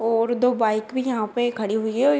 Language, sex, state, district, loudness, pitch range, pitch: Hindi, female, Uttar Pradesh, Deoria, -23 LUFS, 220-250 Hz, 230 Hz